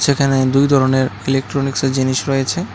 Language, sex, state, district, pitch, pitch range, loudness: Bengali, male, Tripura, West Tripura, 135 Hz, 130-140 Hz, -16 LUFS